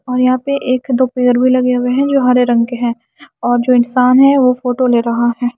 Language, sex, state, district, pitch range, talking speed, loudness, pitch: Hindi, female, Haryana, Charkhi Dadri, 245-255 Hz, 260 wpm, -13 LUFS, 250 Hz